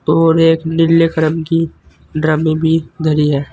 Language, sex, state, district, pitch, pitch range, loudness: Hindi, male, Uttar Pradesh, Saharanpur, 160 Hz, 155-165 Hz, -14 LUFS